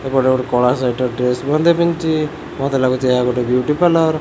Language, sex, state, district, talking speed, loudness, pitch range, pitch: Odia, male, Odisha, Khordha, 215 wpm, -16 LUFS, 125-155 Hz, 130 Hz